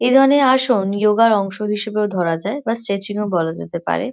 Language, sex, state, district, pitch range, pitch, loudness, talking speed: Bengali, female, West Bengal, North 24 Parganas, 195-235 Hz, 210 Hz, -18 LUFS, 220 wpm